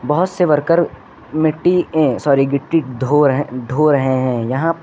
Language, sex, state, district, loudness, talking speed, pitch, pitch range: Hindi, male, Uttar Pradesh, Lucknow, -16 LUFS, 175 wpm, 150 Hz, 130-165 Hz